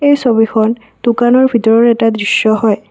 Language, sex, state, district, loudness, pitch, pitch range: Assamese, female, Assam, Kamrup Metropolitan, -11 LUFS, 225 Hz, 220-240 Hz